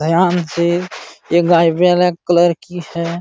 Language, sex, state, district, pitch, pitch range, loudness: Hindi, male, Uttar Pradesh, Jalaun, 170 Hz, 170-175 Hz, -15 LUFS